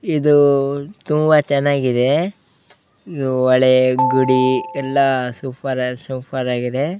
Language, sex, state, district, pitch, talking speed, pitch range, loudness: Kannada, male, Karnataka, Bellary, 135 Hz, 105 wpm, 125-145 Hz, -17 LUFS